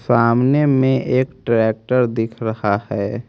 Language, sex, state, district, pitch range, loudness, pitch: Hindi, male, Haryana, Rohtak, 110-130 Hz, -18 LUFS, 120 Hz